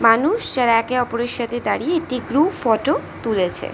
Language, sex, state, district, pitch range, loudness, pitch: Bengali, female, West Bengal, North 24 Parganas, 230-290 Hz, -19 LUFS, 240 Hz